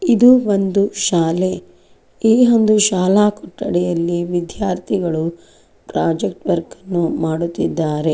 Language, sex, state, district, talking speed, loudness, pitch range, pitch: Kannada, female, Karnataka, Chamarajanagar, 90 wpm, -17 LUFS, 170-205 Hz, 185 Hz